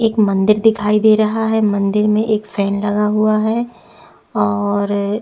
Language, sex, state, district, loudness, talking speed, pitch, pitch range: Hindi, female, Chhattisgarh, Korba, -16 LUFS, 160 wpm, 210 Hz, 205-220 Hz